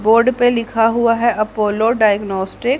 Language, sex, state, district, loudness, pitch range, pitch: Hindi, female, Haryana, Charkhi Dadri, -16 LUFS, 215-235 Hz, 225 Hz